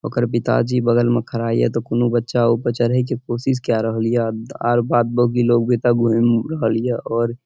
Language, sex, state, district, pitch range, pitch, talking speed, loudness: Maithili, male, Bihar, Saharsa, 115-120 Hz, 120 Hz, 225 wpm, -19 LUFS